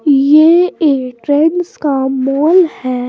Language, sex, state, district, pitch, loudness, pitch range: Hindi, female, Maharashtra, Washim, 290 Hz, -12 LUFS, 265-325 Hz